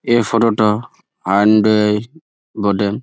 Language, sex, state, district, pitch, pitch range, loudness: Bengali, male, West Bengal, Jalpaiguri, 110 Hz, 105-115 Hz, -15 LUFS